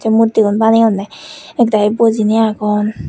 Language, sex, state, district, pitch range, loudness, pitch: Chakma, female, Tripura, West Tripura, 210-225 Hz, -13 LUFS, 220 Hz